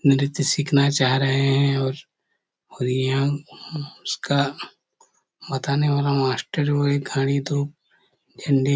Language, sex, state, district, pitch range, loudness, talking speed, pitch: Hindi, male, Chhattisgarh, Korba, 135-145 Hz, -22 LUFS, 115 wpm, 140 Hz